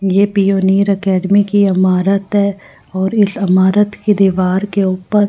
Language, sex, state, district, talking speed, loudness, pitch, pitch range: Hindi, female, Delhi, New Delhi, 150 wpm, -13 LUFS, 195 Hz, 190-205 Hz